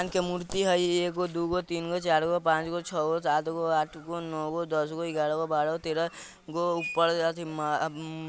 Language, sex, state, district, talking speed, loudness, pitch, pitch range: Bajjika, male, Bihar, Vaishali, 230 wpm, -29 LUFS, 165 Hz, 155-175 Hz